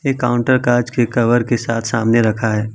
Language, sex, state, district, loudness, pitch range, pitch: Hindi, male, Jharkhand, Ranchi, -16 LUFS, 115-120 Hz, 120 Hz